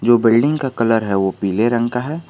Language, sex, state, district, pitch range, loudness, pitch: Hindi, male, Jharkhand, Garhwa, 110-125 Hz, -17 LUFS, 115 Hz